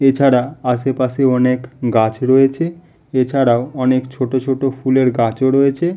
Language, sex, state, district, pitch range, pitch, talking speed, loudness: Bengali, male, West Bengal, Malda, 125-135 Hz, 130 Hz, 130 wpm, -16 LUFS